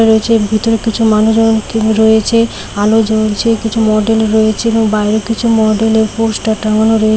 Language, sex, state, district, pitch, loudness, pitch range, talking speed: Bengali, female, West Bengal, Paschim Medinipur, 220 Hz, -12 LUFS, 215-225 Hz, 165 wpm